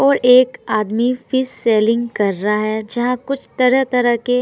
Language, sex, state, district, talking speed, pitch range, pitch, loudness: Hindi, female, Bihar, Patna, 165 wpm, 220-255 Hz, 245 Hz, -16 LUFS